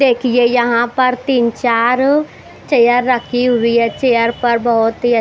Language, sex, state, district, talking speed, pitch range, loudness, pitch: Hindi, female, Bihar, West Champaran, 150 wpm, 235-250 Hz, -14 LUFS, 240 Hz